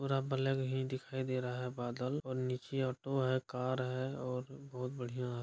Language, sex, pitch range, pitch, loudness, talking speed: Angika, male, 125-135 Hz, 130 Hz, -38 LUFS, 200 wpm